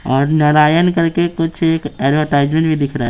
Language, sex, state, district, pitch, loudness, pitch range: Hindi, male, Bihar, Patna, 150 Hz, -14 LUFS, 140-165 Hz